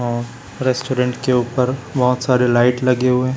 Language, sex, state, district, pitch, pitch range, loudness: Hindi, male, Chhattisgarh, Raipur, 125 Hz, 120-130 Hz, -18 LUFS